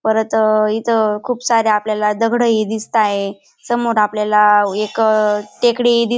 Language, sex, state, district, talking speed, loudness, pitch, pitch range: Marathi, female, Maharashtra, Dhule, 135 wpm, -16 LUFS, 215 Hz, 210-230 Hz